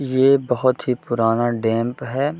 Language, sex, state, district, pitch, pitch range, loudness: Hindi, male, Bihar, Gopalganj, 125 Hz, 120-135 Hz, -19 LUFS